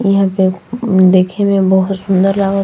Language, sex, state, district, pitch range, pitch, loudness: Bhojpuri, female, Uttar Pradesh, Ghazipur, 190-195 Hz, 195 Hz, -13 LUFS